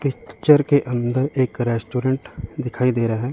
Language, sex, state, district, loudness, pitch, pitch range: Hindi, male, Chandigarh, Chandigarh, -20 LUFS, 130 Hz, 120-140 Hz